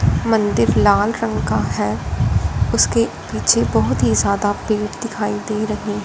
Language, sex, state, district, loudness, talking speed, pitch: Hindi, female, Punjab, Fazilka, -18 LUFS, 140 wpm, 200 Hz